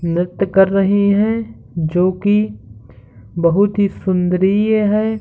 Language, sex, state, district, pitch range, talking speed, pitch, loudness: Hindi, male, Uttar Pradesh, Hamirpur, 170-205 Hz, 115 wpm, 190 Hz, -16 LUFS